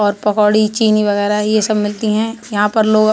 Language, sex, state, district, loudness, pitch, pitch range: Hindi, male, Uttar Pradesh, Budaun, -15 LUFS, 215 Hz, 210-215 Hz